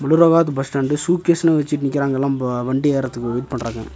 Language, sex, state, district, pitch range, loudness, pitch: Tamil, male, Tamil Nadu, Nilgiris, 130-155 Hz, -19 LUFS, 140 Hz